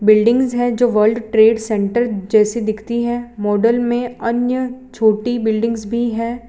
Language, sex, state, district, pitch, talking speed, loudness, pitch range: Hindi, female, Gujarat, Valsad, 230 Hz, 150 wpm, -17 LUFS, 215-240 Hz